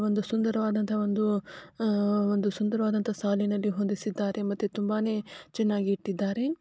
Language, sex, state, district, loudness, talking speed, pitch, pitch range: Kannada, female, Karnataka, Gulbarga, -28 LUFS, 110 wpm, 210 Hz, 205-215 Hz